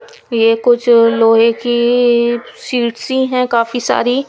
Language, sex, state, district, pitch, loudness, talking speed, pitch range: Hindi, female, Punjab, Kapurthala, 240 Hz, -13 LUFS, 125 wpm, 230-250 Hz